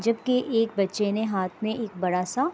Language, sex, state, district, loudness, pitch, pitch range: Urdu, female, Andhra Pradesh, Anantapur, -26 LUFS, 220 Hz, 190-230 Hz